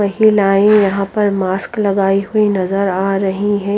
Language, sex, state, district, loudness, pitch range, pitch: Hindi, female, Haryana, Rohtak, -14 LUFS, 195-205 Hz, 200 Hz